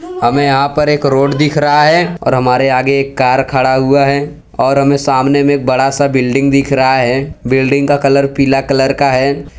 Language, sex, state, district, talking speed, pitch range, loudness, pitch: Hindi, male, Gujarat, Valsad, 215 wpm, 130-140 Hz, -11 LUFS, 140 Hz